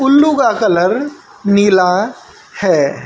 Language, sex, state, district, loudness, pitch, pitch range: Hindi, male, Haryana, Jhajjar, -13 LUFS, 245 Hz, 200-285 Hz